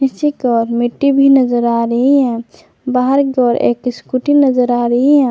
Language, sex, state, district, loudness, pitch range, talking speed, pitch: Hindi, female, Jharkhand, Garhwa, -13 LUFS, 240-275 Hz, 205 wpm, 255 Hz